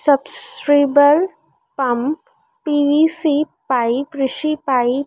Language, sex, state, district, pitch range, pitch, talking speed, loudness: Hindi, female, Madhya Pradesh, Dhar, 270-320 Hz, 290 Hz, 60 wpm, -17 LUFS